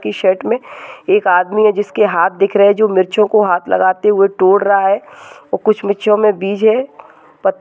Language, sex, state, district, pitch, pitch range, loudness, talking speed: Hindi, female, Maharashtra, Nagpur, 200 Hz, 190-215 Hz, -13 LUFS, 215 wpm